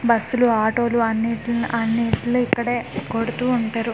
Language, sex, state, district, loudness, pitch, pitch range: Telugu, female, Andhra Pradesh, Manyam, -21 LUFS, 235 Hz, 230-240 Hz